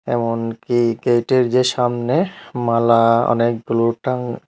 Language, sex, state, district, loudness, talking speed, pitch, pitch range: Bengali, male, Tripura, Unakoti, -18 LUFS, 105 wpm, 120 Hz, 115-125 Hz